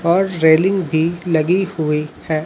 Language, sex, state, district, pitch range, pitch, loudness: Hindi, male, Chhattisgarh, Raipur, 155-185 Hz, 165 Hz, -17 LUFS